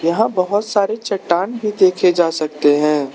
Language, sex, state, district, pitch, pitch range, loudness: Hindi, male, Arunachal Pradesh, Lower Dibang Valley, 185 Hz, 160-205 Hz, -16 LUFS